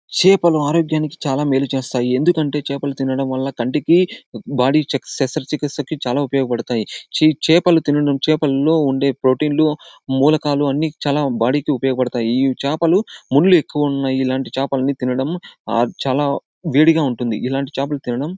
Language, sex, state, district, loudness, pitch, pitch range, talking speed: Telugu, male, Andhra Pradesh, Anantapur, -18 LUFS, 140 Hz, 135-155 Hz, 145 wpm